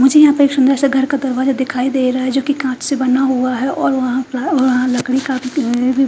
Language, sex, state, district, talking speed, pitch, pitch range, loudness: Hindi, female, Punjab, Fazilka, 255 wpm, 265 Hz, 255-275 Hz, -15 LUFS